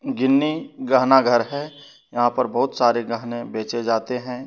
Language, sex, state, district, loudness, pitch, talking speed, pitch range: Hindi, male, Jharkhand, Deoghar, -21 LUFS, 125 Hz, 160 wpm, 120-140 Hz